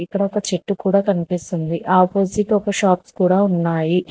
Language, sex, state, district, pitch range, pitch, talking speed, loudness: Telugu, female, Telangana, Hyderabad, 180-200 Hz, 185 Hz, 145 wpm, -18 LUFS